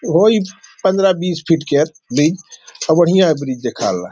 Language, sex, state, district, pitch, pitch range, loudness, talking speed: Hindi, male, Maharashtra, Nagpur, 165 Hz, 150-190 Hz, -16 LUFS, 160 wpm